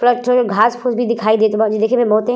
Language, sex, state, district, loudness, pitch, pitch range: Bhojpuri, female, Uttar Pradesh, Gorakhpur, -15 LUFS, 235 Hz, 220-245 Hz